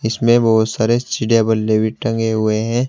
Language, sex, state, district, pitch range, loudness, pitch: Hindi, male, Uttar Pradesh, Saharanpur, 110-120 Hz, -16 LUFS, 110 Hz